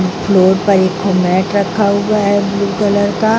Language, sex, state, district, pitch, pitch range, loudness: Hindi, female, Bihar, Vaishali, 200 Hz, 190-205 Hz, -13 LUFS